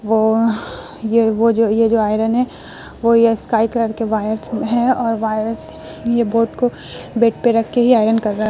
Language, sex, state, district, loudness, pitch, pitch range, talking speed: Hindi, female, Bihar, Vaishali, -17 LUFS, 225 Hz, 220-230 Hz, 210 wpm